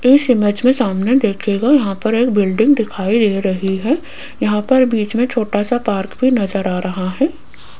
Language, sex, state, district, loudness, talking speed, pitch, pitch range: Hindi, female, Rajasthan, Jaipur, -16 LUFS, 190 wpm, 220 Hz, 200-255 Hz